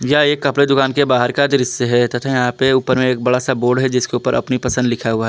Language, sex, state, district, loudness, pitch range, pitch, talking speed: Hindi, male, Jharkhand, Palamu, -16 LUFS, 125-135 Hz, 125 Hz, 295 wpm